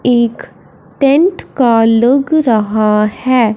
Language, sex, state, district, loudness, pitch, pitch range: Hindi, male, Punjab, Fazilka, -12 LUFS, 240 Hz, 220-270 Hz